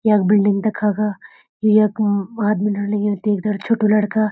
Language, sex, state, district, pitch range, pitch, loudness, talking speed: Garhwali, female, Uttarakhand, Uttarkashi, 205-215 Hz, 210 Hz, -18 LUFS, 165 wpm